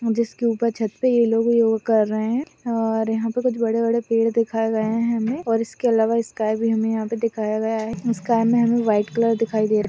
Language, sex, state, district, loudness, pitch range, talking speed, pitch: Hindi, female, Maharashtra, Chandrapur, -21 LUFS, 220-230 Hz, 220 wpm, 230 Hz